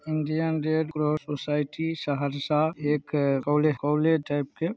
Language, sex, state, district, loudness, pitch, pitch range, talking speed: Hindi, male, Bihar, Saharsa, -26 LUFS, 150 Hz, 145-160 Hz, 125 wpm